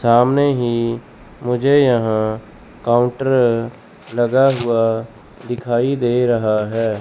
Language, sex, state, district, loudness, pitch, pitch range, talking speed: Hindi, male, Chandigarh, Chandigarh, -17 LUFS, 120 Hz, 115-125 Hz, 95 wpm